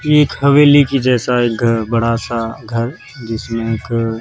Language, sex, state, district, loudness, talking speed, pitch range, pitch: Hindi, male, Chhattisgarh, Raipur, -15 LUFS, 170 wpm, 115-135 Hz, 115 Hz